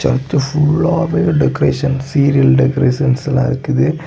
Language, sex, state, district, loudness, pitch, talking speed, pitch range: Tamil, male, Tamil Nadu, Kanyakumari, -14 LUFS, 140 Hz, 120 wpm, 135-145 Hz